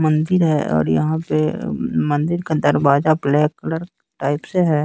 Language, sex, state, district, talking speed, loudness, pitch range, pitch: Hindi, male, Bihar, West Champaran, 160 wpm, -19 LUFS, 110-160 Hz, 150 Hz